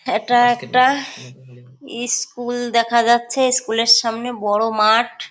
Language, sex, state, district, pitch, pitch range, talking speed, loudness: Bengali, female, West Bengal, Kolkata, 235 Hz, 220-245 Hz, 115 wpm, -17 LUFS